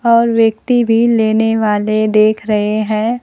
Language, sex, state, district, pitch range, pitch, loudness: Hindi, female, Bihar, Kaimur, 215-230 Hz, 220 Hz, -13 LUFS